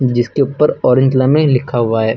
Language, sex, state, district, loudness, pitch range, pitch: Hindi, male, Uttar Pradesh, Lucknow, -13 LUFS, 120-135 Hz, 130 Hz